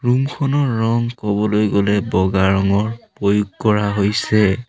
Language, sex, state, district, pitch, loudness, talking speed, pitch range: Assamese, male, Assam, Sonitpur, 105 Hz, -18 LUFS, 115 wpm, 100-115 Hz